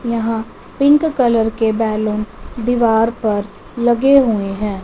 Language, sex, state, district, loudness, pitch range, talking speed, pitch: Hindi, female, Punjab, Fazilka, -16 LUFS, 215-240 Hz, 125 wpm, 225 Hz